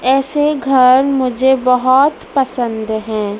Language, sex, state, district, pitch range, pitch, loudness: Hindi, female, Madhya Pradesh, Dhar, 245-270 Hz, 260 Hz, -13 LUFS